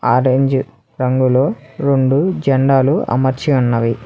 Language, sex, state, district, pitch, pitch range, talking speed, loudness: Telugu, male, Telangana, Hyderabad, 130 Hz, 125-135 Hz, 90 wpm, -15 LUFS